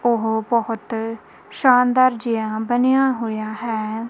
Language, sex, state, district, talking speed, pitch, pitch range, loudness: Punjabi, female, Punjab, Kapurthala, 100 wpm, 230 Hz, 220-245 Hz, -20 LUFS